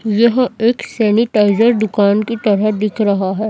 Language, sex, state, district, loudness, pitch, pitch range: Hindi, female, Chhattisgarh, Raipur, -14 LUFS, 215 Hz, 210-230 Hz